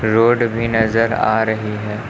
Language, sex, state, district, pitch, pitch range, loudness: Hindi, male, Uttar Pradesh, Lucknow, 110 Hz, 110-115 Hz, -17 LUFS